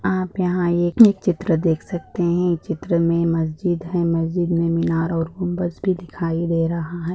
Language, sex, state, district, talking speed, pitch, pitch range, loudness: Hindi, female, Maharashtra, Dhule, 195 wpm, 170 Hz, 165-180 Hz, -20 LUFS